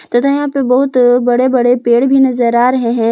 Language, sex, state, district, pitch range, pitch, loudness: Hindi, female, Jharkhand, Palamu, 240-265 Hz, 250 Hz, -11 LUFS